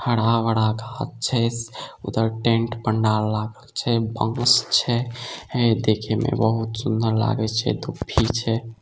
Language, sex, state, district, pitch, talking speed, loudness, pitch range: Maithili, male, Bihar, Samastipur, 115 Hz, 120 wpm, -22 LUFS, 110-120 Hz